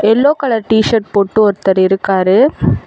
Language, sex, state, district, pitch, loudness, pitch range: Tamil, female, Tamil Nadu, Chennai, 215 Hz, -12 LUFS, 195-230 Hz